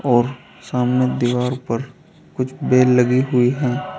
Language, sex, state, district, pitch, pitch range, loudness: Hindi, male, Uttar Pradesh, Saharanpur, 125 Hz, 125-130 Hz, -18 LUFS